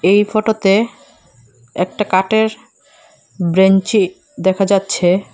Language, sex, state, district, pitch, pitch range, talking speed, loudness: Bengali, female, Assam, Hailakandi, 195 Hz, 185-215 Hz, 80 wpm, -15 LUFS